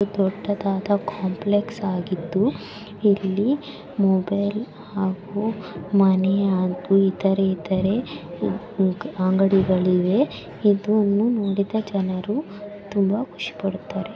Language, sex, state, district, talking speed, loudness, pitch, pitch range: Kannada, female, Karnataka, Bellary, 80 wpm, -22 LUFS, 200 Hz, 190-205 Hz